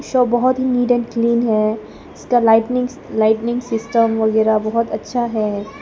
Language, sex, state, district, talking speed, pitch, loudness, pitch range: Hindi, female, Arunachal Pradesh, Papum Pare, 155 wpm, 230 Hz, -17 LUFS, 220-245 Hz